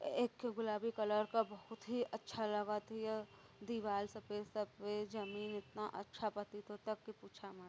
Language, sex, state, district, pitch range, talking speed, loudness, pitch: Hindi, female, Uttar Pradesh, Varanasi, 210-220 Hz, 150 wpm, -43 LUFS, 215 Hz